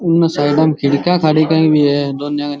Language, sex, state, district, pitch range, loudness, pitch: Rajasthani, male, Rajasthan, Churu, 145-160 Hz, -14 LUFS, 150 Hz